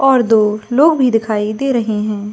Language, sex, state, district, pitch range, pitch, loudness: Hindi, female, Jharkhand, Jamtara, 215-260 Hz, 225 Hz, -14 LUFS